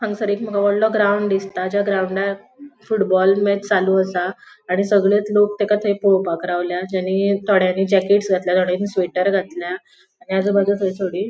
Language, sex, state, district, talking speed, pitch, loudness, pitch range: Konkani, female, Goa, North and South Goa, 165 wpm, 195 Hz, -19 LUFS, 185-205 Hz